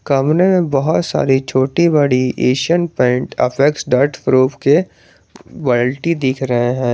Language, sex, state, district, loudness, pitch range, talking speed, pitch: Hindi, male, Jharkhand, Garhwa, -15 LUFS, 125-155 Hz, 130 wpm, 135 Hz